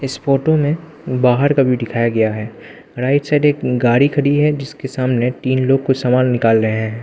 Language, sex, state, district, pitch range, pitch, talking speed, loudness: Hindi, male, Arunachal Pradesh, Lower Dibang Valley, 120-145 Hz, 130 Hz, 205 wpm, -16 LUFS